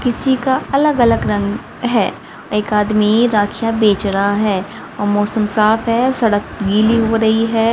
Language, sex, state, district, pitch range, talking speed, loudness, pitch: Hindi, female, Haryana, Rohtak, 205-230 Hz, 165 wpm, -15 LUFS, 220 Hz